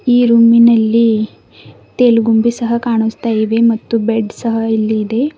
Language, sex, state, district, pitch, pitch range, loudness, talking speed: Kannada, female, Karnataka, Bidar, 230 Hz, 225-235 Hz, -13 LUFS, 135 wpm